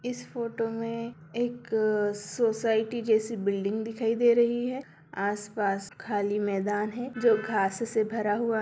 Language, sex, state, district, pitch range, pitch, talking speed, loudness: Hindi, female, Bihar, Sitamarhi, 205-235 Hz, 220 Hz, 145 wpm, -28 LUFS